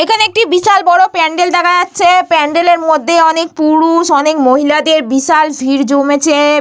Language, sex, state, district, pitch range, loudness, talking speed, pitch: Bengali, female, West Bengal, Paschim Medinipur, 295-355 Hz, -10 LUFS, 145 wpm, 320 Hz